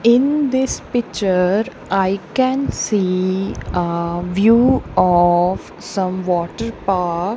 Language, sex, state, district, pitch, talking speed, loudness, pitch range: English, female, Punjab, Kapurthala, 190 Hz, 100 wpm, -18 LUFS, 180-230 Hz